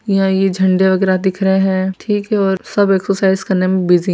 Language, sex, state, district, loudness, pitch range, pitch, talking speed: Hindi, female, Bihar, Saran, -15 LUFS, 190-195 Hz, 190 Hz, 230 wpm